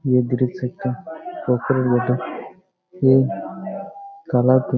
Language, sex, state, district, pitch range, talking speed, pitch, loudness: Bengali, male, West Bengal, Jhargram, 125-180 Hz, 115 wpm, 130 Hz, -21 LUFS